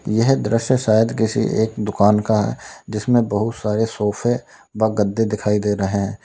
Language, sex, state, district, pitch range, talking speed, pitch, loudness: Hindi, male, Uttar Pradesh, Lalitpur, 105-115 Hz, 155 wpm, 110 Hz, -19 LUFS